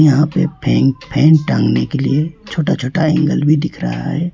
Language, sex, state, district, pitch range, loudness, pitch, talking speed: Hindi, male, West Bengal, Alipurduar, 135-160 Hz, -15 LUFS, 155 Hz, 195 wpm